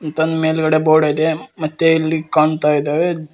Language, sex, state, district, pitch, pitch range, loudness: Kannada, male, Karnataka, Koppal, 155 Hz, 155-160 Hz, -16 LUFS